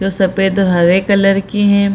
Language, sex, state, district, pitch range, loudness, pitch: Hindi, female, Bihar, Purnia, 190-200 Hz, -13 LUFS, 195 Hz